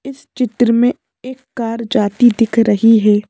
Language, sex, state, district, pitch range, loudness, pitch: Hindi, female, Madhya Pradesh, Bhopal, 225-255 Hz, -14 LUFS, 230 Hz